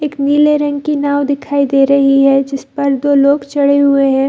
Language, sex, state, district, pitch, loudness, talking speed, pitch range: Hindi, female, Bihar, Gaya, 280 Hz, -12 LUFS, 225 wpm, 275-285 Hz